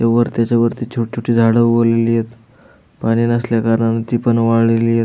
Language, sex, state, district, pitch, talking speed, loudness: Marathi, male, Maharashtra, Aurangabad, 115 Hz, 165 wpm, -15 LUFS